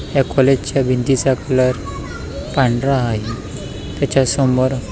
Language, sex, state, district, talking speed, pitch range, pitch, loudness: Marathi, male, Maharashtra, Pune, 120 wpm, 105-135 Hz, 130 Hz, -17 LUFS